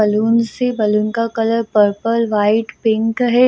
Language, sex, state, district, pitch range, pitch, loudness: Hindi, female, Bihar, Samastipur, 215-230 Hz, 225 Hz, -16 LUFS